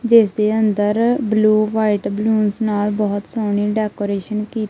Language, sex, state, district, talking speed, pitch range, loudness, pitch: Punjabi, female, Punjab, Kapurthala, 125 wpm, 205-220 Hz, -18 LUFS, 215 Hz